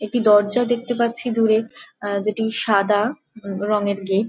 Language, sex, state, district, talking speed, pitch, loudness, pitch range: Bengali, female, West Bengal, Jhargram, 155 wpm, 215 Hz, -20 LUFS, 205-235 Hz